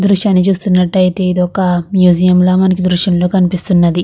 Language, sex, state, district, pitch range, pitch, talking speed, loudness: Telugu, female, Andhra Pradesh, Guntur, 180-190 Hz, 180 Hz, 135 wpm, -11 LUFS